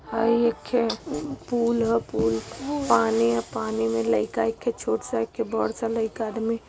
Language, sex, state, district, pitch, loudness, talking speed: Hindi, male, Uttar Pradesh, Varanasi, 225 Hz, -25 LUFS, 195 wpm